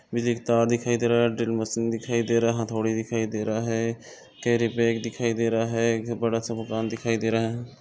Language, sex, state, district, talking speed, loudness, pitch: Hindi, male, Goa, North and South Goa, 220 wpm, -25 LUFS, 115 Hz